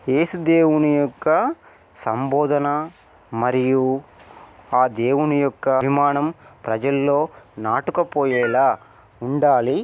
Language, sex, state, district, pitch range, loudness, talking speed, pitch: Telugu, male, Telangana, Nalgonda, 125-145 Hz, -20 LUFS, 75 wpm, 140 Hz